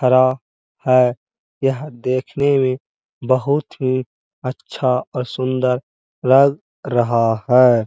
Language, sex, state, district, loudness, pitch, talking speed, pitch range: Hindi, male, Uttar Pradesh, Jalaun, -18 LUFS, 130 Hz, 100 wpm, 125-135 Hz